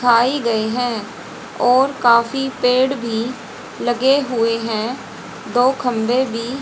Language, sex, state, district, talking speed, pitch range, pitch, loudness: Hindi, female, Haryana, Jhajjar, 120 wpm, 230-260 Hz, 245 Hz, -18 LUFS